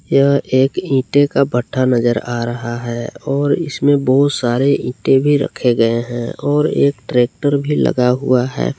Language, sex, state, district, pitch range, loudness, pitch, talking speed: Hindi, male, Jharkhand, Palamu, 120-140 Hz, -16 LUFS, 130 Hz, 170 wpm